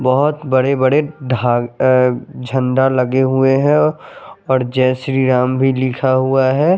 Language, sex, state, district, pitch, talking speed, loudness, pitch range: Hindi, male, Chandigarh, Chandigarh, 130 Hz, 150 wpm, -15 LUFS, 130-135 Hz